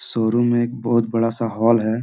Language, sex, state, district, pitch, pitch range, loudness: Hindi, male, Jharkhand, Jamtara, 115 Hz, 115-120 Hz, -19 LUFS